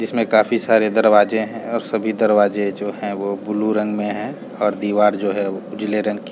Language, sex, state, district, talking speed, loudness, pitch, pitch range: Hindi, male, Chhattisgarh, Balrampur, 220 wpm, -19 LUFS, 105 Hz, 105-110 Hz